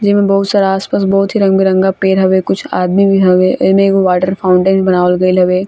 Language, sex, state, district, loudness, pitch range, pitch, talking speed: Bhojpuri, female, Bihar, Gopalganj, -11 LUFS, 185-195 Hz, 190 Hz, 220 wpm